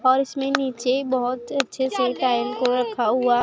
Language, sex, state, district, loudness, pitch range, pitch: Hindi, female, Punjab, Pathankot, -22 LUFS, 250-270 Hz, 255 Hz